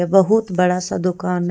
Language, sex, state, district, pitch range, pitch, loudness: Hindi, female, Jharkhand, Deoghar, 180-190 Hz, 180 Hz, -18 LUFS